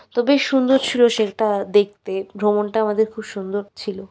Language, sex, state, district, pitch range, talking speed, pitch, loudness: Bengali, female, West Bengal, Malda, 205-240 Hz, 145 wpm, 210 Hz, -19 LUFS